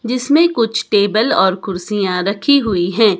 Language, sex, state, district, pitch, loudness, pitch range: Hindi, male, Himachal Pradesh, Shimla, 210 Hz, -15 LUFS, 190-240 Hz